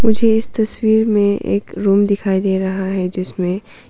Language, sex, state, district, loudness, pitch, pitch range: Hindi, female, Arunachal Pradesh, Papum Pare, -17 LUFS, 200 Hz, 190-220 Hz